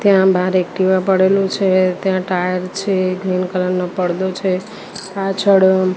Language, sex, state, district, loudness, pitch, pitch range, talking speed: Gujarati, female, Gujarat, Gandhinagar, -16 LUFS, 185 Hz, 185-195 Hz, 140 wpm